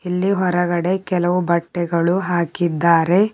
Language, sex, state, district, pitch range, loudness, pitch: Kannada, male, Karnataka, Bidar, 170-185 Hz, -18 LUFS, 175 Hz